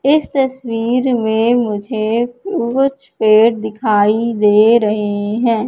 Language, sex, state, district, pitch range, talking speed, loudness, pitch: Hindi, female, Madhya Pradesh, Katni, 215-250 Hz, 105 wpm, -15 LUFS, 230 Hz